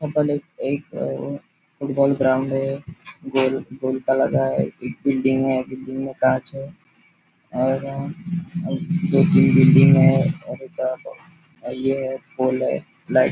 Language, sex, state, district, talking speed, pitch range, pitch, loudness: Hindi, male, Maharashtra, Nagpur, 145 wpm, 130-150 Hz, 135 Hz, -20 LUFS